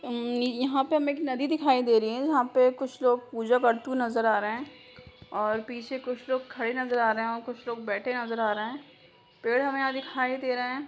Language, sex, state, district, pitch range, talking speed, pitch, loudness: Hindi, female, Bihar, Bhagalpur, 230-265 Hz, 250 wpm, 250 Hz, -28 LUFS